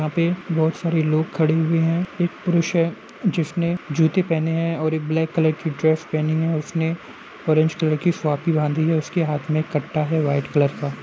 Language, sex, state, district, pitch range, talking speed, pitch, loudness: Hindi, male, Uttar Pradesh, Jalaun, 155-170 Hz, 205 wpm, 160 Hz, -21 LUFS